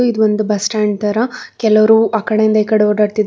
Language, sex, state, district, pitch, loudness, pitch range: Kannada, female, Karnataka, Bangalore, 215 Hz, -14 LUFS, 210-220 Hz